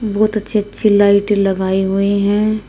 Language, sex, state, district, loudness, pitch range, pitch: Hindi, female, Uttar Pradesh, Shamli, -15 LUFS, 200-215 Hz, 205 Hz